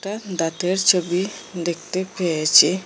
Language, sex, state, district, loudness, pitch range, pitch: Bengali, female, Assam, Hailakandi, -20 LUFS, 170-190 Hz, 180 Hz